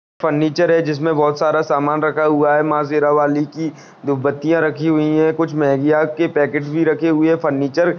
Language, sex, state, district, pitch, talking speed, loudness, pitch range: Hindi, male, Chhattisgarh, Sarguja, 155 Hz, 210 wpm, -17 LUFS, 150-160 Hz